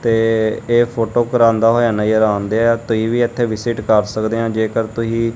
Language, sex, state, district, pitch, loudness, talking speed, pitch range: Punjabi, male, Punjab, Kapurthala, 115 Hz, -16 LUFS, 190 wpm, 110-115 Hz